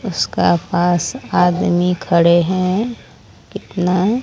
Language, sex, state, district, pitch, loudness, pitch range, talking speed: Hindi, female, Odisha, Sambalpur, 180 Hz, -16 LUFS, 175-190 Hz, 85 wpm